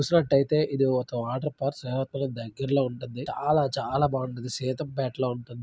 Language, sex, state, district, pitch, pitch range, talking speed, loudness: Telugu, male, Andhra Pradesh, Srikakulam, 135 Hz, 125-140 Hz, 130 wpm, -27 LUFS